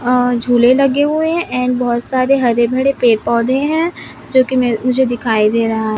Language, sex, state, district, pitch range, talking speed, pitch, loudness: Hindi, female, Chhattisgarh, Raipur, 235-265 Hz, 210 wpm, 250 Hz, -14 LUFS